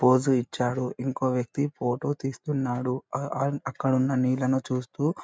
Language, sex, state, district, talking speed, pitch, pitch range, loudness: Telugu, male, Andhra Pradesh, Anantapur, 125 wpm, 130 Hz, 125-135 Hz, -27 LUFS